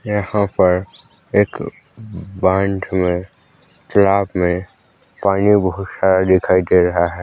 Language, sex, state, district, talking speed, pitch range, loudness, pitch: Hindi, male, Chhattisgarh, Balrampur, 100 wpm, 90-100 Hz, -16 LUFS, 95 Hz